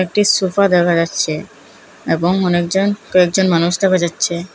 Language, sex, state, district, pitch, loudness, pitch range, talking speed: Bengali, female, Assam, Hailakandi, 180 Hz, -15 LUFS, 170-195 Hz, 130 wpm